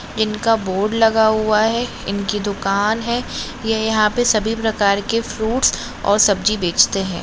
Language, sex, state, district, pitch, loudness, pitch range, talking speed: Hindi, female, Maharashtra, Nagpur, 215 Hz, -18 LUFS, 200-225 Hz, 155 wpm